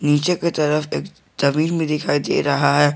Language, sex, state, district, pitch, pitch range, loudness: Hindi, male, Jharkhand, Garhwa, 150 Hz, 145-160 Hz, -19 LUFS